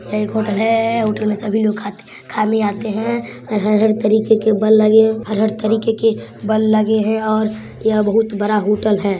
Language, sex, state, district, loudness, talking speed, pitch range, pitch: Hindi, female, Bihar, Samastipur, -16 LUFS, 210 wpm, 210-220 Hz, 215 Hz